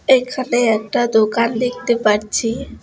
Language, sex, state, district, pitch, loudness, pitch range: Bengali, female, West Bengal, Alipurduar, 235 Hz, -17 LUFS, 220-245 Hz